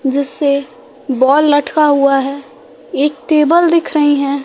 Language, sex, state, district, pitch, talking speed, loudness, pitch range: Hindi, female, Bihar, West Champaran, 285 Hz, 135 wpm, -13 LUFS, 275-300 Hz